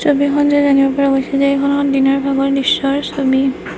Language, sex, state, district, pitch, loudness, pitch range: Assamese, female, Assam, Kamrup Metropolitan, 275 Hz, -14 LUFS, 275-285 Hz